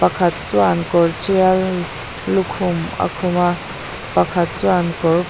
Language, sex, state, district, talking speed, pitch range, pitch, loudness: Mizo, female, Mizoram, Aizawl, 135 wpm, 135-180 Hz, 170 Hz, -17 LUFS